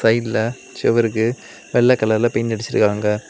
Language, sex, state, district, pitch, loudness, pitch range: Tamil, male, Tamil Nadu, Kanyakumari, 115 Hz, -18 LUFS, 110-120 Hz